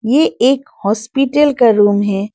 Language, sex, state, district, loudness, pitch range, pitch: Hindi, female, Arunachal Pradesh, Lower Dibang Valley, -13 LUFS, 205-275 Hz, 235 Hz